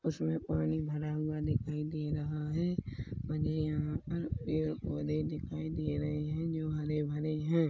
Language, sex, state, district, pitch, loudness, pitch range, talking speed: Hindi, male, Chhattisgarh, Rajnandgaon, 150 Hz, -35 LUFS, 120-155 Hz, 155 wpm